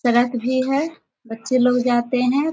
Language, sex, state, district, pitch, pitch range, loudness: Hindi, female, Bihar, Samastipur, 250 Hz, 240-260 Hz, -19 LUFS